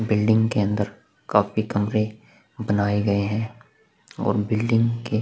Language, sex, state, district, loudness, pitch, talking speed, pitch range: Hindi, male, Chhattisgarh, Sukma, -23 LUFS, 110 Hz, 140 wpm, 105-110 Hz